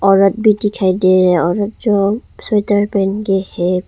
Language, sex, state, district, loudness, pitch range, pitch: Hindi, female, Arunachal Pradesh, Longding, -15 LUFS, 185-210 Hz, 195 Hz